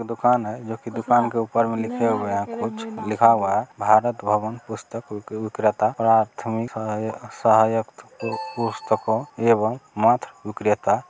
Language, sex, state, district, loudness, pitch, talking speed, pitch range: Maithili, male, Bihar, Begusarai, -22 LUFS, 115 Hz, 95 wpm, 110-115 Hz